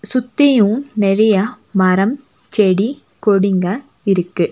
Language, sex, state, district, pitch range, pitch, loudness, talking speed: Tamil, female, Tamil Nadu, Nilgiris, 195-250 Hz, 210 Hz, -15 LUFS, 80 wpm